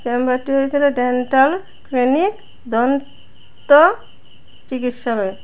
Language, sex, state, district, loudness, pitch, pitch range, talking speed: Bengali, female, Tripura, West Tripura, -17 LUFS, 265 Hz, 245-285 Hz, 75 wpm